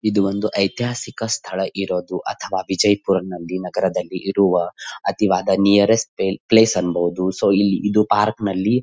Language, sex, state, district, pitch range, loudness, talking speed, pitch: Kannada, male, Karnataka, Bijapur, 95-105 Hz, -19 LUFS, 120 wpm, 100 Hz